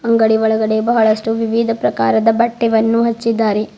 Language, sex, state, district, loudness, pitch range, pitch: Kannada, female, Karnataka, Bidar, -15 LUFS, 220-230 Hz, 225 Hz